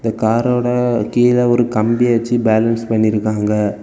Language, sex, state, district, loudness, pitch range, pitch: Tamil, male, Tamil Nadu, Kanyakumari, -15 LUFS, 110-120 Hz, 115 Hz